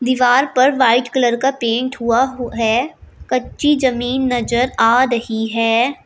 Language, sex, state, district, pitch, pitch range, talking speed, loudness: Hindi, female, Uttar Pradesh, Shamli, 245 Hz, 235-260 Hz, 140 wpm, -16 LUFS